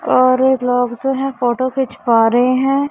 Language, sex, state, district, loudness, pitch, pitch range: Hindi, female, Punjab, Pathankot, -15 LUFS, 255 Hz, 245-265 Hz